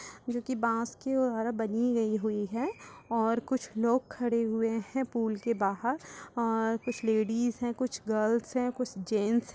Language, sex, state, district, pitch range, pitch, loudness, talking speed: Hindi, female, Chhattisgarh, Raigarh, 220-245 Hz, 230 Hz, -31 LUFS, 175 wpm